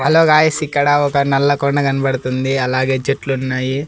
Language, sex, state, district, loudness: Telugu, male, Andhra Pradesh, Annamaya, -15 LUFS